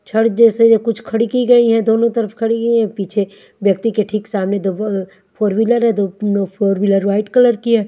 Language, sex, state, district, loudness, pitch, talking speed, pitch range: Hindi, female, Haryana, Charkhi Dadri, -15 LUFS, 215 Hz, 245 wpm, 200-230 Hz